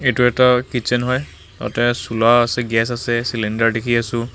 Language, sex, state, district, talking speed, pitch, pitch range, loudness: Assamese, male, Assam, Kamrup Metropolitan, 165 wpm, 120 Hz, 115-125 Hz, -17 LUFS